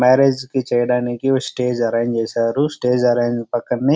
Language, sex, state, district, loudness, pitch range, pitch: Telugu, male, Andhra Pradesh, Chittoor, -18 LUFS, 120-130 Hz, 125 Hz